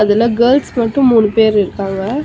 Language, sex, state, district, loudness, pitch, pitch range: Tamil, female, Tamil Nadu, Chennai, -13 LUFS, 225 Hz, 205-245 Hz